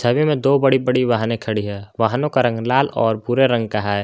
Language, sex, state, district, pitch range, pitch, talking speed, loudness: Hindi, male, Jharkhand, Garhwa, 110-135 Hz, 120 Hz, 250 wpm, -18 LUFS